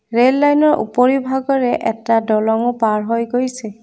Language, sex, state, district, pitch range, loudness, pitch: Assamese, female, Assam, Kamrup Metropolitan, 225-260 Hz, -16 LUFS, 240 Hz